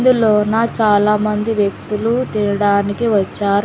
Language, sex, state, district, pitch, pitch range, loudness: Telugu, female, Andhra Pradesh, Sri Satya Sai, 210 Hz, 205-225 Hz, -16 LUFS